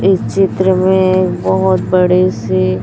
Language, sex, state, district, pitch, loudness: Hindi, female, Chhattisgarh, Raipur, 185 Hz, -12 LUFS